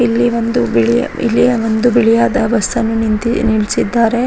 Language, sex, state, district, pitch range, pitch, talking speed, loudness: Kannada, female, Karnataka, Raichur, 220-235 Hz, 230 Hz, 125 wpm, -13 LUFS